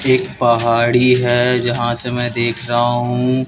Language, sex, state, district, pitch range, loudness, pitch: Hindi, male, Bihar, West Champaran, 120-125 Hz, -15 LUFS, 120 Hz